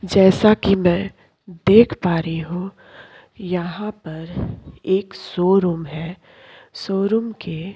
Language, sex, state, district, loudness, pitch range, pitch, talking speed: Hindi, female, Chhattisgarh, Korba, -19 LUFS, 170-195 Hz, 185 Hz, 110 wpm